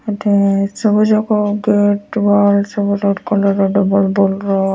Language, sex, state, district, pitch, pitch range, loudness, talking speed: Odia, female, Odisha, Nuapada, 200 Hz, 200-205 Hz, -14 LUFS, 115 wpm